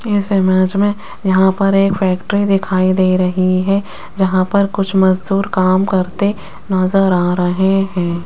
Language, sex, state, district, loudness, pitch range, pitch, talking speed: Hindi, female, Rajasthan, Jaipur, -15 LUFS, 185-195 Hz, 190 Hz, 150 wpm